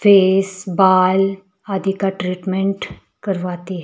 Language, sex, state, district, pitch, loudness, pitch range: Hindi, male, Himachal Pradesh, Shimla, 190 Hz, -18 LUFS, 185-195 Hz